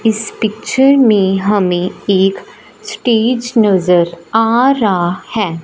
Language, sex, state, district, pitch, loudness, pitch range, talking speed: Hindi, female, Punjab, Fazilka, 210 Hz, -13 LUFS, 185-230 Hz, 105 wpm